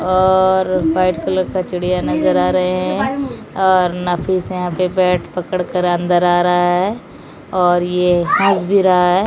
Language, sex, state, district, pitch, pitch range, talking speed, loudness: Hindi, female, Odisha, Malkangiri, 180 Hz, 180-185 Hz, 170 wpm, -16 LUFS